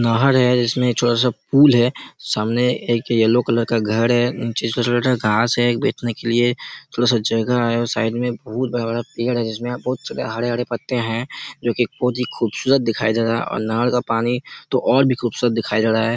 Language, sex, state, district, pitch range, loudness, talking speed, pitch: Hindi, male, Chhattisgarh, Raigarh, 115-125 Hz, -19 LUFS, 210 wpm, 120 Hz